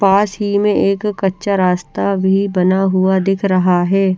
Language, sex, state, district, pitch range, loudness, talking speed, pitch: Hindi, female, Chandigarh, Chandigarh, 185-200 Hz, -15 LUFS, 170 wpm, 195 Hz